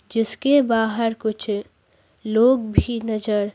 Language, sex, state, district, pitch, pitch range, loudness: Hindi, female, Bihar, Patna, 225 Hz, 215-230 Hz, -21 LUFS